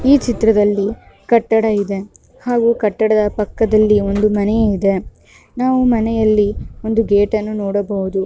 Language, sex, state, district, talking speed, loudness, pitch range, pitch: Kannada, female, Karnataka, Mysore, 115 wpm, -16 LUFS, 205-225 Hz, 215 Hz